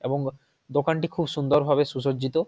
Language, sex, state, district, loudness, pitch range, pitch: Bengali, male, West Bengal, Jhargram, -25 LUFS, 135-160 Hz, 145 Hz